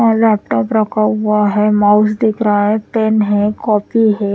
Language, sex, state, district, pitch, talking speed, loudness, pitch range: Hindi, female, Punjab, Pathankot, 210 Hz, 180 wpm, -14 LUFS, 210-220 Hz